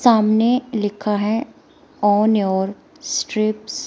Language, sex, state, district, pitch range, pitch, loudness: Hindi, female, Himachal Pradesh, Shimla, 210-265 Hz, 215 Hz, -19 LUFS